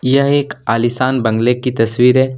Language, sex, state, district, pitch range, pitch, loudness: Hindi, male, Jharkhand, Deoghar, 120-130 Hz, 125 Hz, -14 LUFS